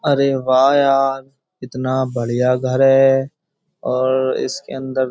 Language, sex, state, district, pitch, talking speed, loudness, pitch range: Hindi, male, Uttar Pradesh, Jyotiba Phule Nagar, 135 Hz, 130 wpm, -17 LUFS, 130-135 Hz